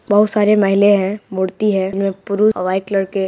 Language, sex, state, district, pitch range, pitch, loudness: Hindi, female, Bihar, Purnia, 190-210 Hz, 195 Hz, -16 LUFS